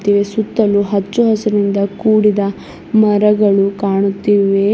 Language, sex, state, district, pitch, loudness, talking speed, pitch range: Kannada, female, Karnataka, Bidar, 205 Hz, -14 LUFS, 90 wpm, 200-215 Hz